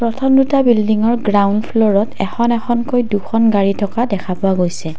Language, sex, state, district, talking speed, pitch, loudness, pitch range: Assamese, female, Assam, Kamrup Metropolitan, 155 wpm, 220 Hz, -15 LUFS, 200-235 Hz